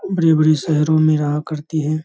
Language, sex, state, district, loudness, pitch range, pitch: Hindi, male, Bihar, Saharsa, -17 LUFS, 150-155 Hz, 155 Hz